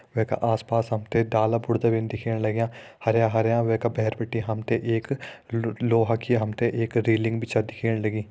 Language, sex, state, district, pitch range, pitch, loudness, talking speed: Hindi, male, Uttarakhand, Uttarkashi, 110-115 Hz, 115 Hz, -25 LUFS, 200 wpm